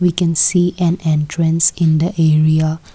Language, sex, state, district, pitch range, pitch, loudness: English, female, Assam, Kamrup Metropolitan, 155-175 Hz, 165 Hz, -15 LUFS